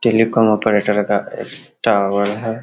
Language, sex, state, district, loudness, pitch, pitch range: Hindi, male, Bihar, Sitamarhi, -17 LUFS, 105 Hz, 100-115 Hz